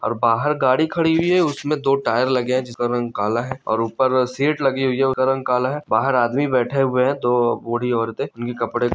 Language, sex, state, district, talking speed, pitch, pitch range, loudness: Hindi, male, Chhattisgarh, Bilaspur, 250 wpm, 130 Hz, 120-135 Hz, -20 LUFS